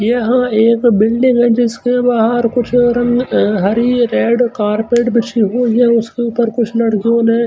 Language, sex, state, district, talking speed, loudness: Hindi, male, Chandigarh, Chandigarh, 155 wpm, -13 LUFS